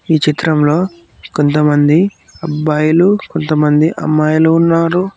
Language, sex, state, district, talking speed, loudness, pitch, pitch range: Telugu, male, Telangana, Mahabubabad, 80 wpm, -12 LUFS, 155 Hz, 150-170 Hz